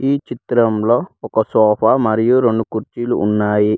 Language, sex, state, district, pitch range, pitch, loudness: Telugu, male, Telangana, Mahabubabad, 105-120 Hz, 110 Hz, -16 LUFS